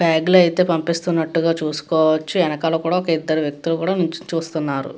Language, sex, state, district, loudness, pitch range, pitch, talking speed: Telugu, female, Andhra Pradesh, Guntur, -19 LUFS, 155-170 Hz, 165 Hz, 155 wpm